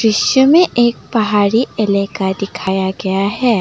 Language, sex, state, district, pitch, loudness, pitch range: Hindi, female, Assam, Kamrup Metropolitan, 210 Hz, -14 LUFS, 195-235 Hz